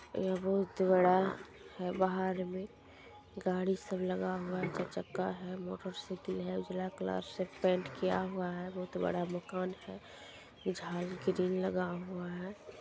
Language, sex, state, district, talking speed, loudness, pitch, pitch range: Maithili, female, Bihar, Supaul, 160 wpm, -36 LUFS, 185 Hz, 175-185 Hz